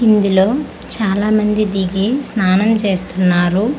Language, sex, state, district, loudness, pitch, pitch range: Telugu, female, Andhra Pradesh, Manyam, -15 LUFS, 205 Hz, 190-220 Hz